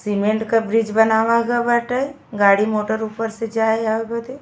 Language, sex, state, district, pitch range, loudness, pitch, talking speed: Bhojpuri, female, Uttar Pradesh, Ghazipur, 220-235 Hz, -19 LUFS, 225 Hz, 190 wpm